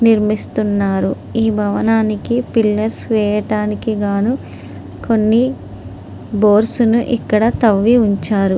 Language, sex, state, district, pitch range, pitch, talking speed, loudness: Telugu, female, Andhra Pradesh, Srikakulam, 205-225 Hz, 215 Hz, 105 wpm, -15 LUFS